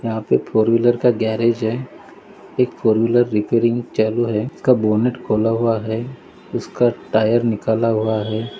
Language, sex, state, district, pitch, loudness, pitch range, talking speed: Hindi, male, Maharashtra, Dhule, 115 Hz, -18 LUFS, 110-120 Hz, 165 wpm